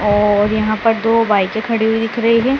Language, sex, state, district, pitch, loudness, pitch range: Hindi, female, Madhya Pradesh, Dhar, 220 Hz, -15 LUFS, 210-230 Hz